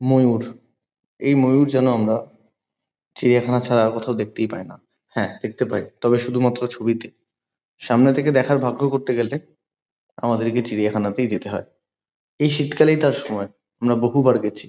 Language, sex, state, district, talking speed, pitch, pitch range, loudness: Bengali, male, West Bengal, Kolkata, 145 wpm, 120 Hz, 115-130 Hz, -20 LUFS